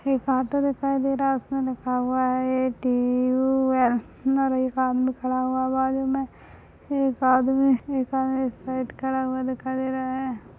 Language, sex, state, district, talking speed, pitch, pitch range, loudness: Hindi, female, Chhattisgarh, Bastar, 190 wpm, 260 Hz, 255-265 Hz, -24 LUFS